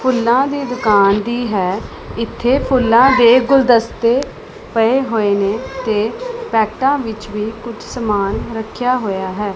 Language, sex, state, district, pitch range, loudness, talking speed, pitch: Punjabi, female, Punjab, Pathankot, 210-255 Hz, -16 LUFS, 130 wpm, 230 Hz